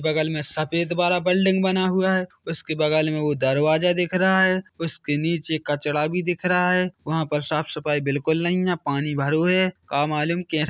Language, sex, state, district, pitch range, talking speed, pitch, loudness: Hindi, male, Chhattisgarh, Bilaspur, 150-180 Hz, 200 wpm, 160 Hz, -22 LUFS